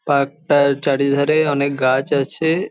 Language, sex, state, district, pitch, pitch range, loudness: Bengali, male, West Bengal, Jhargram, 140 Hz, 140-150 Hz, -17 LUFS